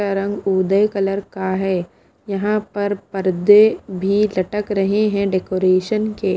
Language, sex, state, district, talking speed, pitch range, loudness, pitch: Hindi, female, Punjab, Fazilka, 140 wpm, 190-205 Hz, -18 LUFS, 195 Hz